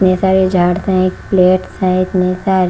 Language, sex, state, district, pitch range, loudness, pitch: Hindi, female, Haryana, Jhajjar, 185-190 Hz, -13 LUFS, 185 Hz